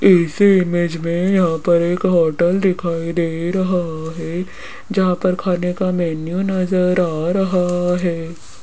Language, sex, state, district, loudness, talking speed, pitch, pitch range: Hindi, female, Rajasthan, Jaipur, -18 LUFS, 140 wpm, 175 Hz, 170-185 Hz